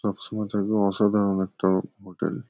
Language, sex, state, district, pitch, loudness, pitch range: Bengali, male, West Bengal, Kolkata, 100 Hz, -25 LUFS, 95-105 Hz